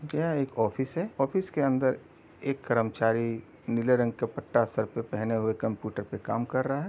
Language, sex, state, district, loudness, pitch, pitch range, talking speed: Hindi, male, Uttar Pradesh, Deoria, -29 LUFS, 120 Hz, 110-135 Hz, 200 wpm